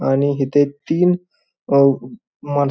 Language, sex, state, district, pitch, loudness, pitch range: Marathi, male, Maharashtra, Pune, 145 Hz, -18 LUFS, 140-180 Hz